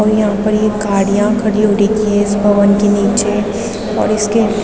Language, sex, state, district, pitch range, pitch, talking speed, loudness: Hindi, female, Uttarakhand, Tehri Garhwal, 205-215 Hz, 210 Hz, 205 wpm, -13 LUFS